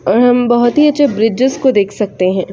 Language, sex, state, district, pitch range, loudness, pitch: Hindi, female, Chhattisgarh, Raigarh, 205-265 Hz, -12 LUFS, 240 Hz